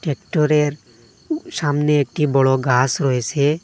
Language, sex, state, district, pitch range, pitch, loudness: Bengali, male, Assam, Hailakandi, 130-150 Hz, 145 Hz, -18 LUFS